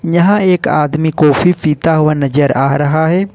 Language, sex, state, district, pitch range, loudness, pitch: Hindi, male, Jharkhand, Ranchi, 145-175 Hz, -12 LUFS, 155 Hz